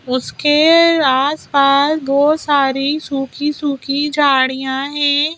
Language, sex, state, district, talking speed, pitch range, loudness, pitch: Hindi, female, Madhya Pradesh, Bhopal, 80 wpm, 275-300 Hz, -15 LUFS, 285 Hz